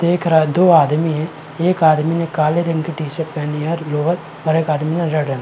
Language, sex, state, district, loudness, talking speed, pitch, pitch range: Hindi, male, Uttar Pradesh, Varanasi, -17 LUFS, 255 wpm, 160 Hz, 150-170 Hz